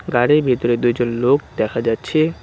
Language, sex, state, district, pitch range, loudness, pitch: Bengali, male, West Bengal, Cooch Behar, 120-150 Hz, -18 LUFS, 120 Hz